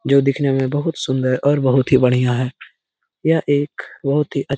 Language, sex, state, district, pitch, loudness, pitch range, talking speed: Hindi, male, Bihar, Lakhisarai, 140 Hz, -18 LUFS, 130-145 Hz, 210 wpm